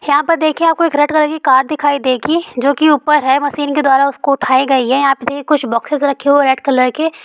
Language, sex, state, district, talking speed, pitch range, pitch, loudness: Hindi, female, Bihar, Supaul, 255 wpm, 270-300 Hz, 285 Hz, -13 LUFS